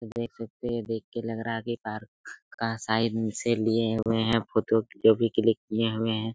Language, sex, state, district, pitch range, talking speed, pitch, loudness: Hindi, male, Bihar, Araria, 110-115 Hz, 205 wpm, 115 Hz, -27 LUFS